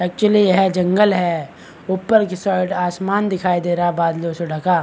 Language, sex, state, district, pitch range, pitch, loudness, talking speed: Hindi, male, Chhattisgarh, Bastar, 175-195 Hz, 180 Hz, -18 LUFS, 200 wpm